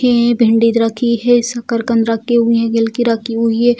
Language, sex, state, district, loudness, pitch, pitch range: Hindi, female, Bihar, Jamui, -14 LUFS, 230 Hz, 230-240 Hz